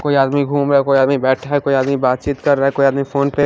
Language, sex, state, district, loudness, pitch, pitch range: Hindi, female, Haryana, Charkhi Dadri, -15 LUFS, 140 Hz, 135-145 Hz